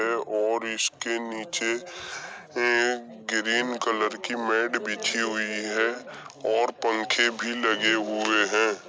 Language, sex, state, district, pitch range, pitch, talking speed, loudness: Hindi, male, Uttar Pradesh, Jyotiba Phule Nagar, 110-120 Hz, 115 Hz, 115 wpm, -25 LUFS